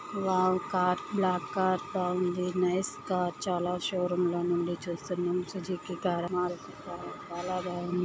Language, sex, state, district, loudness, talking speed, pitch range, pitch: Telugu, female, Andhra Pradesh, Guntur, -31 LUFS, 135 wpm, 175-185 Hz, 180 Hz